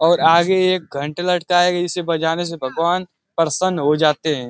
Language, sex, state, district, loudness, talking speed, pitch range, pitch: Hindi, male, Uttar Pradesh, Ghazipur, -18 LUFS, 200 wpm, 155-180 Hz, 170 Hz